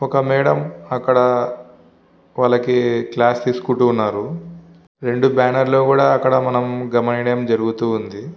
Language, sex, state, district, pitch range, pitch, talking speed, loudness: Telugu, male, Andhra Pradesh, Visakhapatnam, 120-130 Hz, 125 Hz, 115 wpm, -17 LUFS